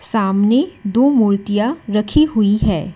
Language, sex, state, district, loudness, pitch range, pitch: Hindi, female, Karnataka, Bangalore, -16 LUFS, 205-250 Hz, 215 Hz